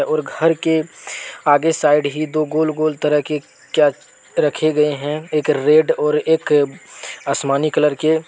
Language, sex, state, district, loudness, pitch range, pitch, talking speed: Hindi, male, Jharkhand, Deoghar, -17 LUFS, 150-155 Hz, 150 Hz, 160 wpm